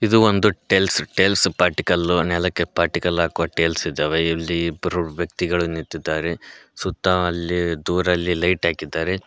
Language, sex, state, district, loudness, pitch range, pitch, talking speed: Kannada, male, Karnataka, Koppal, -20 LUFS, 85-90 Hz, 85 Hz, 125 wpm